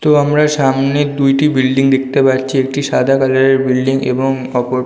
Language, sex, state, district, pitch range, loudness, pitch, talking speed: Bengali, male, West Bengal, North 24 Parganas, 130-140 Hz, -13 LUFS, 135 Hz, 160 wpm